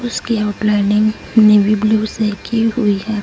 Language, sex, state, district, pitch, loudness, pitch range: Hindi, female, Punjab, Fazilka, 215 Hz, -15 LUFS, 210-220 Hz